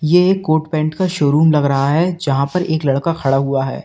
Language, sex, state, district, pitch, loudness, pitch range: Hindi, male, Uttar Pradesh, Lalitpur, 155 Hz, -16 LUFS, 140-170 Hz